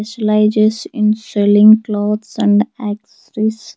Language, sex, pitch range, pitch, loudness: English, female, 210-220 Hz, 215 Hz, -14 LUFS